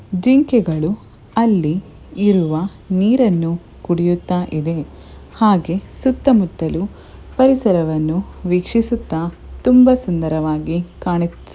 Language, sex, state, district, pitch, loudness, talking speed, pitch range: Kannada, female, Karnataka, Bellary, 180 Hz, -17 LUFS, 75 wpm, 165-225 Hz